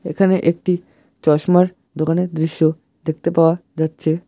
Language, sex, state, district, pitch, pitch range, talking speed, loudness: Bengali, male, West Bengal, Alipurduar, 165 Hz, 160-180 Hz, 110 wpm, -18 LUFS